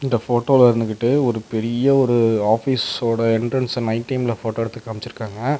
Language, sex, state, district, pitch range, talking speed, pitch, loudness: Tamil, male, Tamil Nadu, Namakkal, 115-130 Hz, 150 wpm, 120 Hz, -19 LUFS